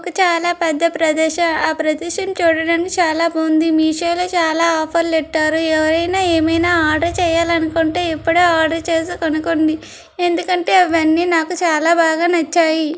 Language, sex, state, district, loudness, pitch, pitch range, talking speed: Telugu, female, Andhra Pradesh, Srikakulam, -16 LUFS, 330 Hz, 320-345 Hz, 135 wpm